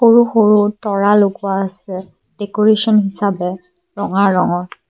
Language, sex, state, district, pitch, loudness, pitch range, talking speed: Assamese, female, Assam, Kamrup Metropolitan, 200 Hz, -15 LUFS, 190-210 Hz, 110 wpm